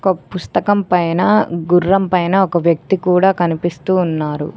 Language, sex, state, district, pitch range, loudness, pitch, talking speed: Telugu, female, Telangana, Mahabubabad, 170-190 Hz, -15 LUFS, 180 Hz, 130 wpm